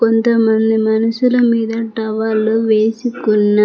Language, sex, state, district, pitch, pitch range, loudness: Telugu, female, Telangana, Mahabubabad, 225 Hz, 220-230 Hz, -15 LUFS